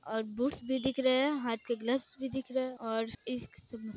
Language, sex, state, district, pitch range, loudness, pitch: Hindi, female, Bihar, Kishanganj, 230-265 Hz, -34 LUFS, 255 Hz